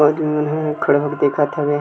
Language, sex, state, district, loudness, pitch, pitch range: Chhattisgarhi, male, Chhattisgarh, Sukma, -18 LUFS, 150 Hz, 145-150 Hz